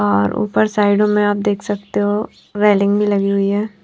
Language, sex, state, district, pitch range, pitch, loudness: Hindi, female, Himachal Pradesh, Shimla, 200-210 Hz, 205 Hz, -16 LUFS